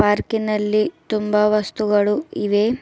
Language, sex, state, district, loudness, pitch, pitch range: Kannada, female, Karnataka, Bidar, -19 LUFS, 210 Hz, 205-215 Hz